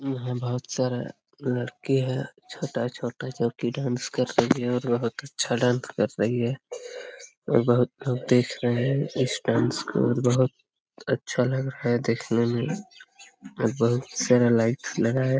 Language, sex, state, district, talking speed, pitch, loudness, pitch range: Hindi, male, Bihar, Jamui, 165 wpm, 125 Hz, -26 LUFS, 120-135 Hz